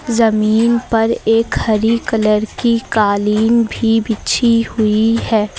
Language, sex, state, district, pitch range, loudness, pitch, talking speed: Hindi, female, Uttar Pradesh, Lucknow, 215-230 Hz, -14 LUFS, 225 Hz, 120 wpm